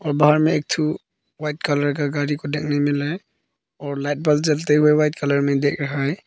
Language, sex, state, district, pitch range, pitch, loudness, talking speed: Hindi, male, Arunachal Pradesh, Papum Pare, 145-150 Hz, 145 Hz, -20 LUFS, 230 wpm